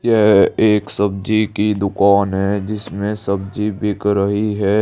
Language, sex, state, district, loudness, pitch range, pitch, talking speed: Hindi, male, Uttar Pradesh, Saharanpur, -17 LUFS, 100-105 Hz, 105 Hz, 135 wpm